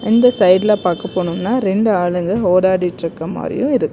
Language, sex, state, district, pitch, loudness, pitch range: Tamil, female, Karnataka, Bangalore, 185 Hz, -16 LUFS, 180-215 Hz